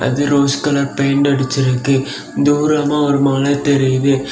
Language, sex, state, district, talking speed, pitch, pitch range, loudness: Tamil, male, Tamil Nadu, Kanyakumari, 110 wpm, 140 Hz, 135-145 Hz, -15 LUFS